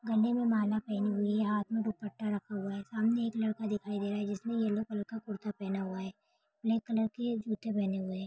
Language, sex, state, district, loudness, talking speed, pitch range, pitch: Hindi, female, Jharkhand, Jamtara, -34 LUFS, 240 wpm, 205-225 Hz, 210 Hz